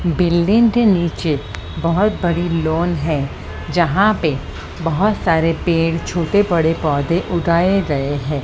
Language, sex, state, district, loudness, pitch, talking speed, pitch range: Hindi, male, Maharashtra, Mumbai Suburban, -17 LUFS, 170 Hz, 130 wpm, 160-180 Hz